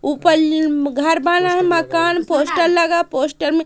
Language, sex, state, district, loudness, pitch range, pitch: Hindi, female, Madhya Pradesh, Katni, -16 LUFS, 300-340 Hz, 330 Hz